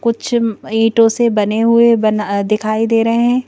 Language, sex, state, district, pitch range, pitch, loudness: Hindi, female, Madhya Pradesh, Bhopal, 215-235 Hz, 225 Hz, -14 LUFS